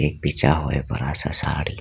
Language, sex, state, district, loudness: Hindi, male, Arunachal Pradesh, Lower Dibang Valley, -23 LUFS